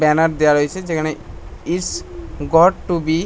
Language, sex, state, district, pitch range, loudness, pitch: Bengali, male, West Bengal, North 24 Parganas, 145-170 Hz, -17 LUFS, 155 Hz